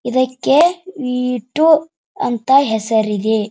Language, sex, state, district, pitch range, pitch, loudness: Kannada, male, Karnataka, Dharwad, 220-300 Hz, 255 Hz, -16 LUFS